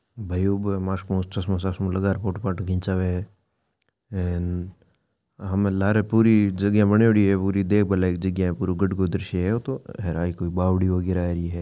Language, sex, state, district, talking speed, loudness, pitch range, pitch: Marwari, male, Rajasthan, Nagaur, 200 wpm, -23 LUFS, 90-100 Hz, 95 Hz